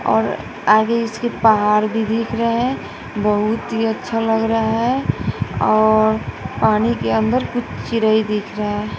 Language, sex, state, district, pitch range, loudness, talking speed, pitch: Hindi, female, Bihar, West Champaran, 215-230 Hz, -18 LUFS, 145 wpm, 220 Hz